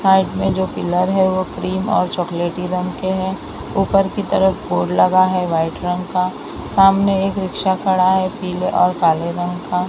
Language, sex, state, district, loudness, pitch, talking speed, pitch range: Hindi, female, Maharashtra, Mumbai Suburban, -18 LUFS, 185 Hz, 190 wpm, 180-190 Hz